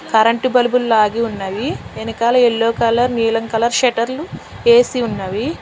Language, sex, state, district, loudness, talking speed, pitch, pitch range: Telugu, female, Telangana, Hyderabad, -16 LUFS, 130 wpm, 230 Hz, 225-245 Hz